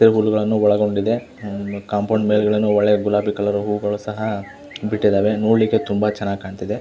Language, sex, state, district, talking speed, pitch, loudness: Kannada, male, Karnataka, Belgaum, 105 wpm, 105 Hz, -19 LUFS